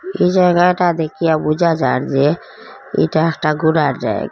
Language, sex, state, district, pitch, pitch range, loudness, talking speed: Bengali, female, Assam, Hailakandi, 160 Hz, 155-175 Hz, -16 LUFS, 140 wpm